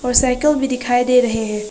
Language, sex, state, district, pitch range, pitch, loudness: Hindi, female, Arunachal Pradesh, Papum Pare, 240-255 Hz, 250 Hz, -16 LUFS